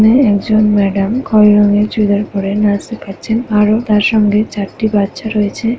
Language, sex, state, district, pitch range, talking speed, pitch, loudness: Bengali, female, West Bengal, Paschim Medinipur, 205-220 Hz, 165 wpm, 210 Hz, -13 LUFS